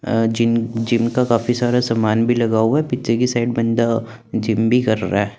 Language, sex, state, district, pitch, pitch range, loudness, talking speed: Hindi, male, Chandigarh, Chandigarh, 115 Hz, 115-120 Hz, -18 LUFS, 220 wpm